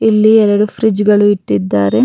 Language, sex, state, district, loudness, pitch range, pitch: Kannada, female, Karnataka, Raichur, -12 LUFS, 145-215 Hz, 210 Hz